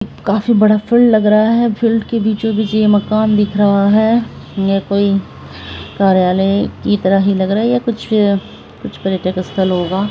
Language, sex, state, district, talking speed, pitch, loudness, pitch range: Hindi, female, Bihar, Araria, 170 wpm, 205 Hz, -14 LUFS, 195-215 Hz